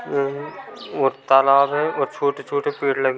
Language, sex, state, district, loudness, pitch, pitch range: Hindi, male, Chhattisgarh, Kabirdham, -20 LUFS, 140 Hz, 135-145 Hz